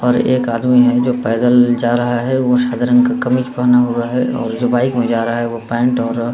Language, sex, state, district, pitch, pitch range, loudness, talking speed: Hindi, male, Bihar, Saran, 125 Hz, 120-125 Hz, -15 LUFS, 275 wpm